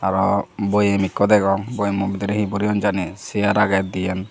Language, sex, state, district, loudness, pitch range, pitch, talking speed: Chakma, male, Tripura, Dhalai, -20 LUFS, 95-105 Hz, 100 Hz, 165 wpm